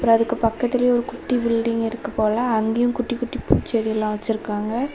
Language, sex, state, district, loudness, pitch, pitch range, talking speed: Tamil, female, Tamil Nadu, Kanyakumari, -22 LUFS, 230 Hz, 220-245 Hz, 170 wpm